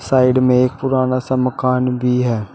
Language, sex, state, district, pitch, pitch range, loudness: Hindi, male, Uttar Pradesh, Shamli, 130 Hz, 125-130 Hz, -16 LUFS